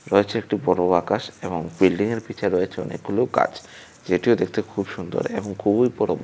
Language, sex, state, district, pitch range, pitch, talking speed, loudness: Bengali, male, Tripura, West Tripura, 90-110 Hz, 105 Hz, 185 wpm, -23 LUFS